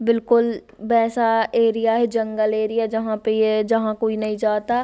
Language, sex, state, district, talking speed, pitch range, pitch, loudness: Hindi, female, Bihar, Sitamarhi, 185 wpm, 215-230 Hz, 225 Hz, -20 LUFS